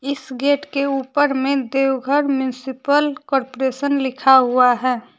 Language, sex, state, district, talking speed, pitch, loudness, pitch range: Hindi, female, Jharkhand, Deoghar, 125 wpm, 270 Hz, -18 LUFS, 260-280 Hz